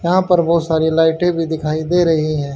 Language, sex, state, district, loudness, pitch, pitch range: Hindi, male, Haryana, Rohtak, -16 LUFS, 165 Hz, 160-175 Hz